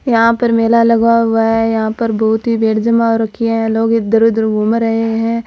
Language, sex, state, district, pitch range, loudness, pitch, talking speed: Marwari, female, Rajasthan, Churu, 225-230 Hz, -13 LUFS, 225 Hz, 230 wpm